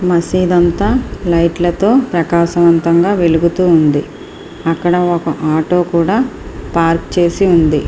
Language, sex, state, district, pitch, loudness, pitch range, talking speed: Telugu, female, Andhra Pradesh, Srikakulam, 170 Hz, -13 LUFS, 165-180 Hz, 105 wpm